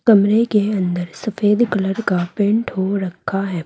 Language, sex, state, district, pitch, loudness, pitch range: Hindi, female, Uttar Pradesh, Saharanpur, 200 Hz, -18 LUFS, 190-215 Hz